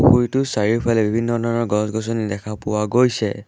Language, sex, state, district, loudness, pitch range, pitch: Assamese, male, Assam, Sonitpur, -20 LUFS, 105-120 Hz, 115 Hz